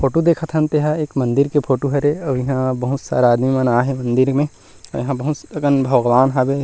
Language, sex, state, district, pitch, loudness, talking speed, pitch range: Chhattisgarhi, male, Chhattisgarh, Rajnandgaon, 135 Hz, -18 LUFS, 215 wpm, 130-145 Hz